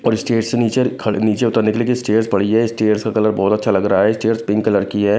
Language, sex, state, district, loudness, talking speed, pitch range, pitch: Hindi, male, Punjab, Kapurthala, -16 LUFS, 300 wpm, 105-115 Hz, 110 Hz